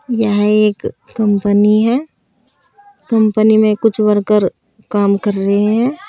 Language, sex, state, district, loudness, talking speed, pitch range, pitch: Hindi, female, Uttar Pradesh, Saharanpur, -14 LUFS, 120 wpm, 205-225 Hz, 215 Hz